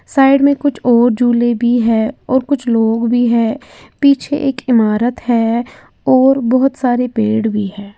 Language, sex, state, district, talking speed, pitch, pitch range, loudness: Hindi, female, Uttar Pradesh, Lalitpur, 165 wpm, 240 Hz, 230-265 Hz, -14 LUFS